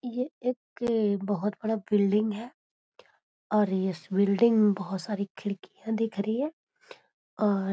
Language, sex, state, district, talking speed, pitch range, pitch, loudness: Magahi, female, Bihar, Gaya, 140 wpm, 200-235 Hz, 210 Hz, -28 LUFS